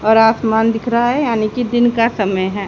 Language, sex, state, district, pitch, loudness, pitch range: Hindi, female, Haryana, Charkhi Dadri, 225 Hz, -15 LUFS, 215-240 Hz